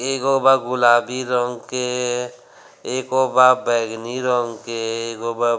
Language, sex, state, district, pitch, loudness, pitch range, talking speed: Bhojpuri, male, Bihar, Gopalganj, 125 Hz, -19 LUFS, 120-130 Hz, 140 wpm